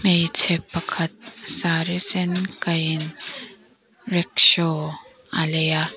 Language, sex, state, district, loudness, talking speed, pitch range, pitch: Mizo, female, Mizoram, Aizawl, -19 LUFS, 90 wpm, 160-180 Hz, 170 Hz